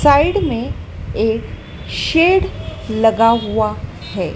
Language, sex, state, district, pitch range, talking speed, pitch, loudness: Hindi, female, Madhya Pradesh, Dhar, 220-325 Hz, 95 wpm, 225 Hz, -17 LUFS